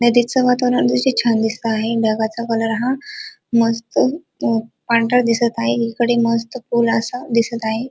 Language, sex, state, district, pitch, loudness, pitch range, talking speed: Marathi, female, Maharashtra, Dhule, 230 Hz, -18 LUFS, 225-245 Hz, 150 wpm